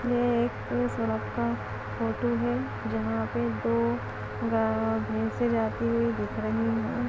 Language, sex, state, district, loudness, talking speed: Hindi, female, Chhattisgarh, Balrampur, -29 LUFS, 125 wpm